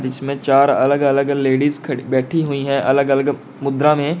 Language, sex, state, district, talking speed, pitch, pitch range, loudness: Hindi, male, Uttar Pradesh, Lalitpur, 185 wpm, 140 Hz, 135-145 Hz, -17 LUFS